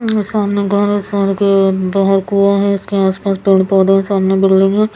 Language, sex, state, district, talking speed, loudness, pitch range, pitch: Hindi, female, Bihar, Patna, 205 wpm, -13 LUFS, 195-200 Hz, 195 Hz